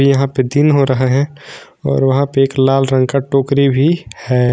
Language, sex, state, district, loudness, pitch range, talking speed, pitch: Hindi, male, Jharkhand, Garhwa, -14 LUFS, 130-140 Hz, 210 wpm, 135 Hz